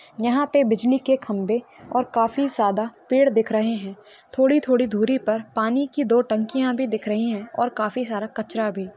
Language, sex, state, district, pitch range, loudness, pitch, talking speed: Hindi, female, Maharashtra, Pune, 215-260 Hz, -22 LUFS, 230 Hz, 185 wpm